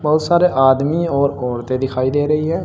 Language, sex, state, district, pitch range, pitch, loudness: Hindi, male, Uttar Pradesh, Saharanpur, 130-160 Hz, 145 Hz, -16 LUFS